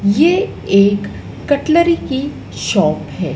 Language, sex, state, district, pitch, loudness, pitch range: Hindi, female, Madhya Pradesh, Dhar, 285 Hz, -15 LUFS, 205-335 Hz